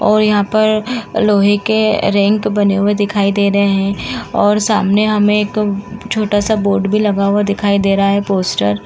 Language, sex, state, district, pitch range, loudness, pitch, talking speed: Hindi, female, Uttar Pradesh, Jalaun, 200-210 Hz, -14 LUFS, 205 Hz, 175 wpm